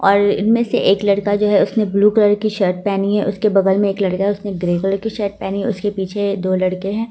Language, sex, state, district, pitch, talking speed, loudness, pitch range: Hindi, female, Delhi, New Delhi, 200 Hz, 270 wpm, -17 LUFS, 195-210 Hz